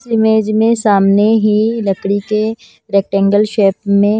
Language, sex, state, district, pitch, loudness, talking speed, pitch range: Hindi, female, Punjab, Kapurthala, 210 Hz, -13 LUFS, 145 wpm, 200-220 Hz